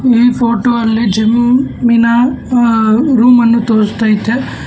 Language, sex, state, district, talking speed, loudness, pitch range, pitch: Kannada, male, Karnataka, Bangalore, 90 wpm, -11 LUFS, 225-245 Hz, 235 Hz